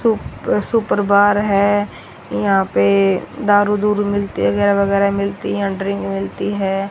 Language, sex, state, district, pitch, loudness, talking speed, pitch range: Hindi, female, Haryana, Rohtak, 200 Hz, -17 LUFS, 165 wpm, 195-205 Hz